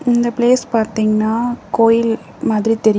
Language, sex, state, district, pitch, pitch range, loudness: Tamil, female, Tamil Nadu, Namakkal, 225 Hz, 215-240 Hz, -16 LUFS